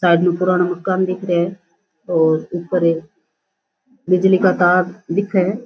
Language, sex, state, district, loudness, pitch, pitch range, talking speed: Rajasthani, female, Rajasthan, Nagaur, -17 LUFS, 180 Hz, 175-185 Hz, 150 wpm